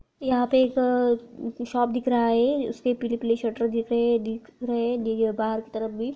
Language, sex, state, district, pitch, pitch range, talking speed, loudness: Hindi, female, Rajasthan, Nagaur, 235 Hz, 230-245 Hz, 235 wpm, -25 LUFS